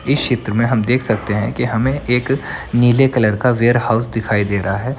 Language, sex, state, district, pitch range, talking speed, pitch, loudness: Hindi, female, Bihar, Madhepura, 110-125 Hz, 230 wpm, 120 Hz, -16 LUFS